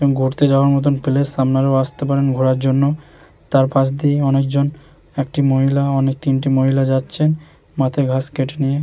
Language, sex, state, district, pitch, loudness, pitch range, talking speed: Bengali, male, West Bengal, Jhargram, 135 Hz, -17 LUFS, 135-140 Hz, 155 wpm